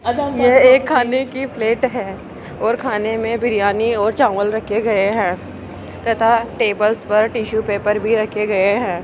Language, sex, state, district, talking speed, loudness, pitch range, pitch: Hindi, female, Rajasthan, Jaipur, 160 wpm, -17 LUFS, 210-245 Hz, 225 Hz